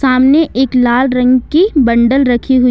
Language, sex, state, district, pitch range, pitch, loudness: Hindi, female, Jharkhand, Ranchi, 250-270 Hz, 255 Hz, -11 LUFS